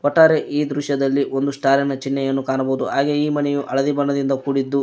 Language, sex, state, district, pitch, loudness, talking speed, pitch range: Kannada, male, Karnataka, Koppal, 140 Hz, -19 LUFS, 160 wpm, 135-145 Hz